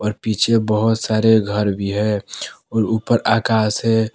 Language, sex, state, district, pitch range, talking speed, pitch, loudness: Hindi, male, Jharkhand, Palamu, 105-115 Hz, 160 wpm, 110 Hz, -18 LUFS